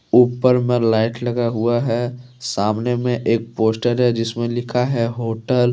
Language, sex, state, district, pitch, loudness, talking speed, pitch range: Hindi, male, Jharkhand, Deoghar, 120 Hz, -19 LUFS, 165 wpm, 115-125 Hz